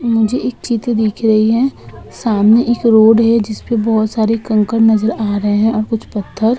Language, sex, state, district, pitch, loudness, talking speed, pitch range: Hindi, female, Uttar Pradesh, Etah, 225 Hz, -14 LUFS, 200 wpm, 215-230 Hz